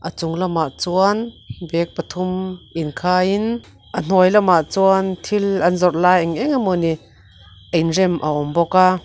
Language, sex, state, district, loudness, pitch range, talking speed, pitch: Mizo, female, Mizoram, Aizawl, -18 LUFS, 165-190 Hz, 160 wpm, 180 Hz